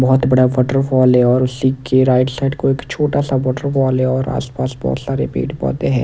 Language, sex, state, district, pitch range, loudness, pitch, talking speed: Hindi, male, Odisha, Nuapada, 125-135 Hz, -16 LUFS, 130 Hz, 220 wpm